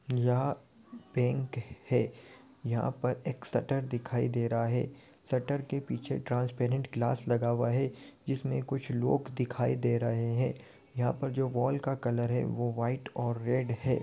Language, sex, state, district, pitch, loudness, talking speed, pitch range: Hindi, male, Bihar, Saran, 125 Hz, -32 LUFS, 165 wpm, 120-135 Hz